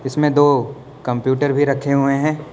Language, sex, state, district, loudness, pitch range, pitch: Hindi, male, Uttar Pradesh, Lucknow, -17 LUFS, 140-145 Hz, 140 Hz